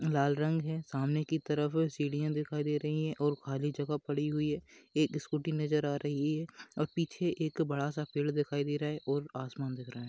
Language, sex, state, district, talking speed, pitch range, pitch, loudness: Hindi, female, Uttar Pradesh, Etah, 220 wpm, 145-155 Hz, 150 Hz, -34 LUFS